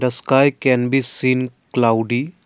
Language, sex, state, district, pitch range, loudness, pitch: English, male, Assam, Kamrup Metropolitan, 125-135 Hz, -17 LUFS, 130 Hz